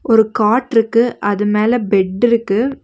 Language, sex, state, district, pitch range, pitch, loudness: Tamil, female, Tamil Nadu, Nilgiris, 210-240 Hz, 225 Hz, -15 LUFS